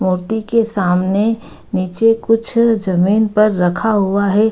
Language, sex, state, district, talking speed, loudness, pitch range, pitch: Hindi, female, Bihar, Gaya, 145 wpm, -15 LUFS, 185-225 Hz, 210 Hz